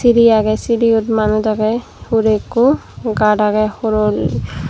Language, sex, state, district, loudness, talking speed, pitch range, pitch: Chakma, female, Tripura, Dhalai, -15 LUFS, 140 wpm, 215-230 Hz, 220 Hz